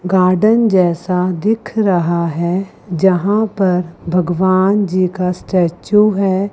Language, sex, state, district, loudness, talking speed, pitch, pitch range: Hindi, female, Chandigarh, Chandigarh, -15 LUFS, 110 wpm, 185 Hz, 180-200 Hz